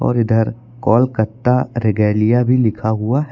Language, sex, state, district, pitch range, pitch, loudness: Hindi, male, Uttar Pradesh, Lucknow, 110-125 Hz, 115 Hz, -16 LUFS